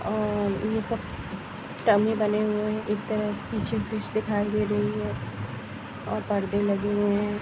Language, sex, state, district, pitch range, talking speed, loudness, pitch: Hindi, female, Jharkhand, Jamtara, 175-215 Hz, 170 wpm, -27 LUFS, 205 Hz